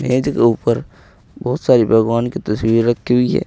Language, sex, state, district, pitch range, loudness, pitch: Hindi, male, Uttar Pradesh, Saharanpur, 115-125 Hz, -16 LUFS, 120 Hz